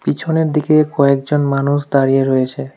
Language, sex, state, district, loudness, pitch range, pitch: Bengali, male, West Bengal, Alipurduar, -15 LUFS, 135-150 Hz, 140 Hz